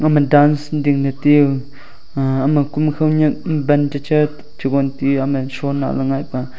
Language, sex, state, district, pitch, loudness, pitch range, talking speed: Wancho, male, Arunachal Pradesh, Longding, 145 Hz, -17 LUFS, 135-150 Hz, 145 wpm